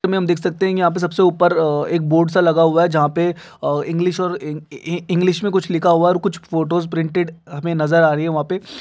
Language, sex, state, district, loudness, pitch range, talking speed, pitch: Hindi, male, Jharkhand, Jamtara, -18 LUFS, 165-180 Hz, 225 wpm, 170 Hz